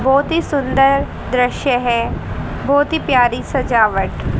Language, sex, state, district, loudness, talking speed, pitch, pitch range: Hindi, female, Haryana, Rohtak, -16 LUFS, 125 wpm, 270 Hz, 245-285 Hz